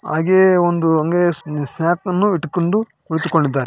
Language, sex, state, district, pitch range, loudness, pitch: Kannada, male, Karnataka, Raichur, 160-180 Hz, -17 LUFS, 170 Hz